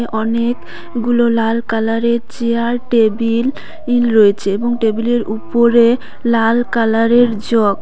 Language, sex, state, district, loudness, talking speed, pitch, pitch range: Bengali, female, West Bengal, Cooch Behar, -15 LUFS, 130 wpm, 235 Hz, 225-240 Hz